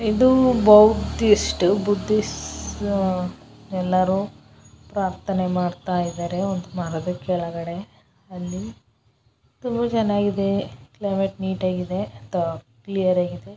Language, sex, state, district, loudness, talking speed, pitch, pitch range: Kannada, female, Karnataka, Chamarajanagar, -22 LUFS, 75 wpm, 185 Hz, 175-200 Hz